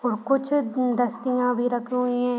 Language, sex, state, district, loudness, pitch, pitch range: Hindi, female, Uttar Pradesh, Deoria, -24 LUFS, 245 Hz, 245-255 Hz